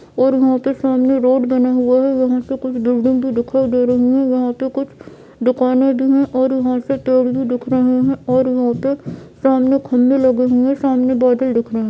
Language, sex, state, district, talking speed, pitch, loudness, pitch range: Hindi, female, Bihar, Purnia, 215 wpm, 255 Hz, -16 LUFS, 250-265 Hz